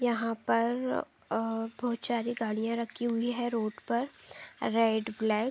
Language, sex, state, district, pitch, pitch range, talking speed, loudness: Hindi, female, Uttar Pradesh, Deoria, 230 Hz, 225-240 Hz, 155 wpm, -32 LUFS